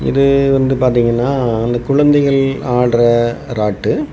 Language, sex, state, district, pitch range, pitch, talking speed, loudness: Tamil, male, Tamil Nadu, Kanyakumari, 120-135 Hz, 125 Hz, 100 wpm, -14 LUFS